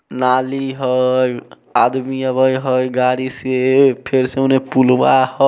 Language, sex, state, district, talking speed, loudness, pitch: Maithili, male, Bihar, Samastipur, 130 wpm, -16 LUFS, 130 Hz